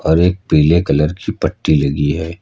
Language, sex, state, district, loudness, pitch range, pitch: Hindi, male, Uttar Pradesh, Lucknow, -15 LUFS, 75-90 Hz, 80 Hz